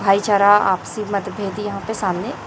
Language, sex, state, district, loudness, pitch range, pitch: Hindi, female, Chhattisgarh, Raipur, -19 LUFS, 195-205 Hz, 200 Hz